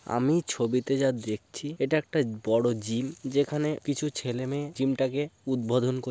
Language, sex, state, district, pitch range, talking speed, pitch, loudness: Bengali, male, West Bengal, Kolkata, 120-145 Hz, 135 wpm, 135 Hz, -28 LUFS